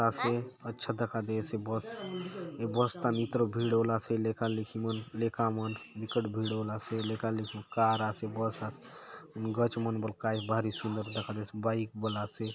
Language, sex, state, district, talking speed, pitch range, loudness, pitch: Halbi, male, Chhattisgarh, Bastar, 185 wpm, 110-115 Hz, -34 LUFS, 110 Hz